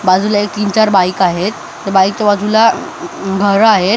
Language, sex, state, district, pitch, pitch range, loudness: Marathi, male, Maharashtra, Mumbai Suburban, 205 Hz, 190-210 Hz, -13 LUFS